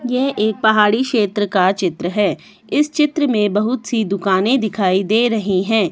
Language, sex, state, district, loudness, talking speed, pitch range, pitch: Hindi, female, Himachal Pradesh, Shimla, -17 LUFS, 170 wpm, 195-240 Hz, 215 Hz